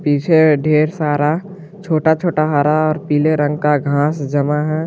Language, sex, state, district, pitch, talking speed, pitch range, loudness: Hindi, male, Jharkhand, Garhwa, 150 Hz, 160 wpm, 145-155 Hz, -15 LUFS